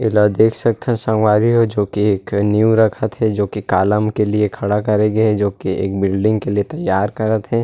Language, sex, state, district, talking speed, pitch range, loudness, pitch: Chhattisgarhi, male, Chhattisgarh, Rajnandgaon, 195 wpm, 105-110 Hz, -16 LUFS, 105 Hz